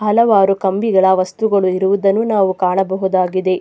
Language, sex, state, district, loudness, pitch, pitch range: Kannada, female, Karnataka, Dakshina Kannada, -15 LUFS, 190 Hz, 185-200 Hz